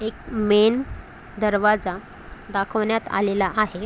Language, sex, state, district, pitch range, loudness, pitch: Marathi, female, Maharashtra, Chandrapur, 200-220 Hz, -22 LUFS, 210 Hz